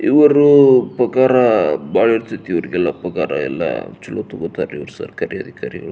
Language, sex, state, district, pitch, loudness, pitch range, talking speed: Kannada, male, Karnataka, Belgaum, 130 Hz, -16 LUFS, 120-145 Hz, 90 wpm